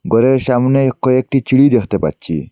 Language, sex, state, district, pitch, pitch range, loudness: Bengali, male, Assam, Hailakandi, 130 Hz, 110-135 Hz, -14 LUFS